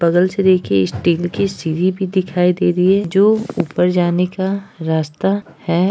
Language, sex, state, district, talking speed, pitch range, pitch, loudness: Hindi, male, Bihar, Araria, 180 wpm, 175-190 Hz, 180 Hz, -17 LUFS